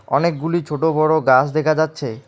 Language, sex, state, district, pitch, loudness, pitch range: Bengali, male, West Bengal, Alipurduar, 155 Hz, -17 LUFS, 140-160 Hz